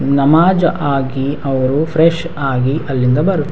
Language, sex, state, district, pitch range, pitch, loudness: Kannada, male, Karnataka, Raichur, 135-165 Hz, 145 Hz, -14 LUFS